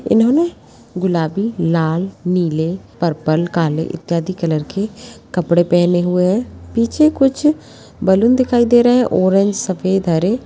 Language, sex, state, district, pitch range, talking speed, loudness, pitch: Hindi, female, Bihar, Jahanabad, 170-230 Hz, 140 wpm, -16 LUFS, 185 Hz